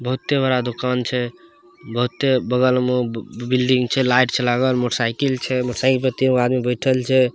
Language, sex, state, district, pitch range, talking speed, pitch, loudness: Maithili, male, Bihar, Samastipur, 125-130 Hz, 180 wpm, 125 Hz, -19 LUFS